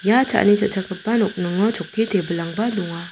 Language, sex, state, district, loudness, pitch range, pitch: Garo, female, Meghalaya, South Garo Hills, -20 LUFS, 175-220 Hz, 205 Hz